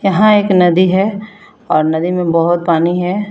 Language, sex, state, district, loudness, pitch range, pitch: Hindi, female, Jharkhand, Palamu, -13 LUFS, 170-200 Hz, 180 Hz